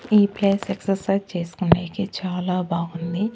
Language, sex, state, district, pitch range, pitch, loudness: Telugu, female, Andhra Pradesh, Annamaya, 175-200 Hz, 190 Hz, -23 LUFS